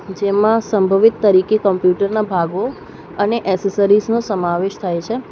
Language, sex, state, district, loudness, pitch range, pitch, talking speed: Gujarati, female, Gujarat, Valsad, -16 LUFS, 185-215 Hz, 200 Hz, 125 wpm